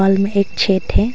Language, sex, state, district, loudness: Hindi, female, Arunachal Pradesh, Longding, -16 LUFS